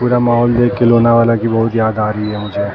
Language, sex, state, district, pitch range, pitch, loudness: Hindi, male, Maharashtra, Mumbai Suburban, 105-120 Hz, 115 Hz, -13 LUFS